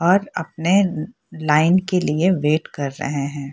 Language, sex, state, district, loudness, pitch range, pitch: Hindi, female, Bihar, Purnia, -20 LUFS, 150-185 Hz, 160 Hz